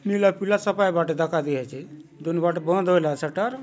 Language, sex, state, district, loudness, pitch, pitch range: Halbi, male, Chhattisgarh, Bastar, -23 LUFS, 175 Hz, 155-195 Hz